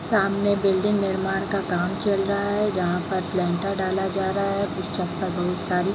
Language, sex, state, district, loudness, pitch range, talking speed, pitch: Hindi, female, Bihar, East Champaran, -24 LUFS, 185-200 Hz, 170 wpm, 195 Hz